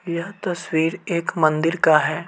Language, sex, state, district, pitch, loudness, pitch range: Hindi, male, Uttar Pradesh, Varanasi, 165 Hz, -21 LUFS, 155-180 Hz